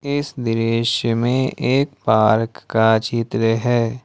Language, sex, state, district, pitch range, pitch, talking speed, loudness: Hindi, male, Jharkhand, Ranchi, 115-130 Hz, 115 Hz, 120 wpm, -18 LUFS